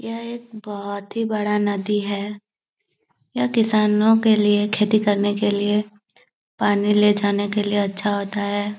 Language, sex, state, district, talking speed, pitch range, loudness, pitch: Hindi, male, Jharkhand, Jamtara, 155 wpm, 205-215 Hz, -20 LUFS, 210 Hz